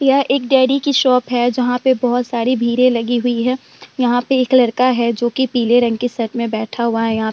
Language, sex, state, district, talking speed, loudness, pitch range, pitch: Hindi, female, Bihar, Vaishali, 260 wpm, -16 LUFS, 235-255 Hz, 245 Hz